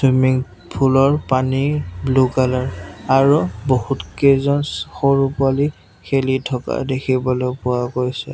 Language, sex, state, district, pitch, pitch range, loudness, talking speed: Assamese, male, Assam, Sonitpur, 130 Hz, 125-135 Hz, -18 LUFS, 115 wpm